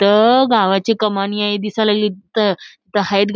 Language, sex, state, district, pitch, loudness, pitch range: Marathi, female, Maharashtra, Solapur, 210 Hz, -16 LUFS, 200-215 Hz